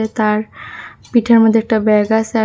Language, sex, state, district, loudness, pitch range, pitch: Bengali, female, Tripura, West Tripura, -14 LUFS, 215-225 Hz, 220 Hz